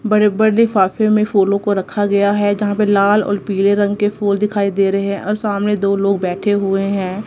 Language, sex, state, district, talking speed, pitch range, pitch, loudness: Hindi, female, Punjab, Kapurthala, 230 wpm, 200-210 Hz, 205 Hz, -16 LUFS